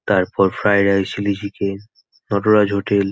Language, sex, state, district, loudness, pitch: Bengali, male, West Bengal, North 24 Parganas, -18 LUFS, 100 Hz